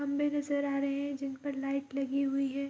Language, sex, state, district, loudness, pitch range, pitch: Hindi, female, Bihar, Kishanganj, -33 LUFS, 275-285 Hz, 275 Hz